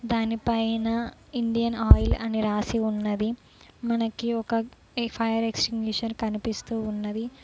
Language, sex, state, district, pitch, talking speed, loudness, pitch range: Telugu, female, Telangana, Mahabubabad, 225 Hz, 95 wpm, -27 LUFS, 220-230 Hz